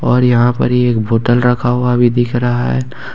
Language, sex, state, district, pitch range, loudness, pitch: Hindi, male, Jharkhand, Ranchi, 120-125 Hz, -13 LUFS, 120 Hz